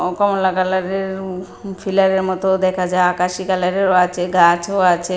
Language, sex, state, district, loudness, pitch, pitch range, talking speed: Bengali, female, Tripura, West Tripura, -17 LUFS, 185 Hz, 180-190 Hz, 140 wpm